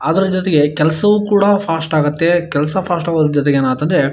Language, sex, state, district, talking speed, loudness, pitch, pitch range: Kannada, male, Karnataka, Shimoga, 160 wpm, -14 LUFS, 165 Hz, 150-185 Hz